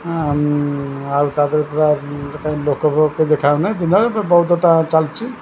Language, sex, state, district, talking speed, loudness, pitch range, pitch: Odia, male, Odisha, Khordha, 165 wpm, -16 LUFS, 145-170 Hz, 150 Hz